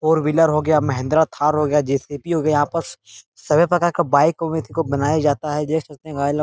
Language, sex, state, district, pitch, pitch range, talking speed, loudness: Hindi, male, Bihar, Jahanabad, 150 Hz, 145-160 Hz, 290 wpm, -19 LUFS